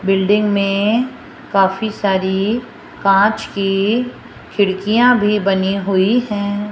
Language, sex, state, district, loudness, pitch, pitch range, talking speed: Hindi, female, Rajasthan, Jaipur, -16 LUFS, 205 Hz, 195-215 Hz, 100 wpm